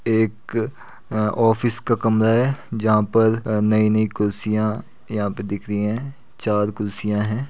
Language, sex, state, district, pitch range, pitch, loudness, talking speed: Hindi, male, Uttar Pradesh, Muzaffarnagar, 105-115 Hz, 110 Hz, -21 LUFS, 150 wpm